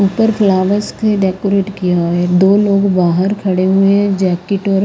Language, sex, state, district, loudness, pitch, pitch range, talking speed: Hindi, female, Haryana, Rohtak, -13 LUFS, 195 Hz, 185-200 Hz, 160 wpm